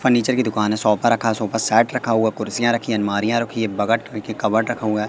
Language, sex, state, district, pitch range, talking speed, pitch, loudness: Hindi, male, Madhya Pradesh, Katni, 110-120 Hz, 270 wpm, 110 Hz, -20 LUFS